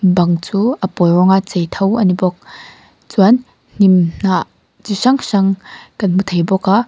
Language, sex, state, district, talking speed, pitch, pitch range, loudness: Mizo, female, Mizoram, Aizawl, 185 wpm, 190 Hz, 180-205 Hz, -14 LUFS